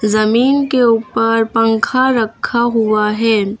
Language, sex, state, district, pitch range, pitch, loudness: Hindi, female, Uttar Pradesh, Lucknow, 215-235 Hz, 225 Hz, -14 LUFS